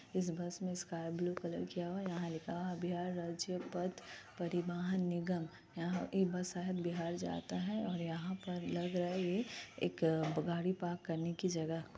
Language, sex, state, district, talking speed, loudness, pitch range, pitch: Hindi, female, Bihar, Kishanganj, 190 wpm, -40 LUFS, 170-180 Hz, 175 Hz